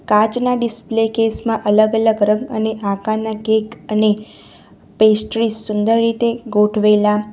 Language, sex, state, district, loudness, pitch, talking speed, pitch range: Gujarati, female, Gujarat, Valsad, -16 LUFS, 220 Hz, 130 wpm, 210-225 Hz